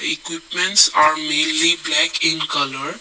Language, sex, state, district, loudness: English, male, Assam, Kamrup Metropolitan, -16 LUFS